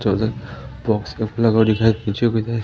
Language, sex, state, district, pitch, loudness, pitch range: Hindi, male, Madhya Pradesh, Umaria, 110 Hz, -19 LUFS, 110-115 Hz